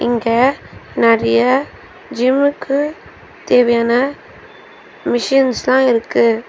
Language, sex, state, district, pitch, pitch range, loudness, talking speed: Tamil, female, Tamil Nadu, Chennai, 245 Hz, 230-270 Hz, -15 LUFS, 55 wpm